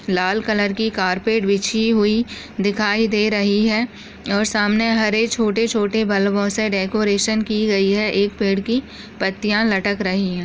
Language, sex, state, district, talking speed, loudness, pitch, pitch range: Hindi, female, Maharashtra, Nagpur, 160 wpm, -19 LUFS, 210 Hz, 200-220 Hz